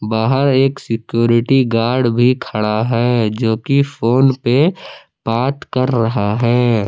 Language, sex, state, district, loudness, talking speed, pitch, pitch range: Hindi, male, Jharkhand, Palamu, -15 LUFS, 130 wpm, 120 Hz, 115-130 Hz